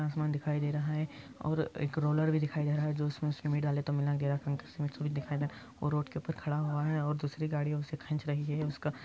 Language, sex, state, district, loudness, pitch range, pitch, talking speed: Hindi, male, Andhra Pradesh, Anantapur, -34 LUFS, 145-150 Hz, 150 Hz, 240 wpm